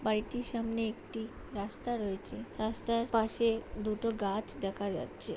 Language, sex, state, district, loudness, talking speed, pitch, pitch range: Bengali, male, West Bengal, Jhargram, -35 LUFS, 125 wpm, 220 Hz, 210-230 Hz